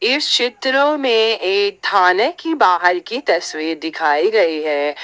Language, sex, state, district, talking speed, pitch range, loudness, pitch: Hindi, female, Jharkhand, Ranchi, 145 wpm, 160-260 Hz, -16 LUFS, 200 Hz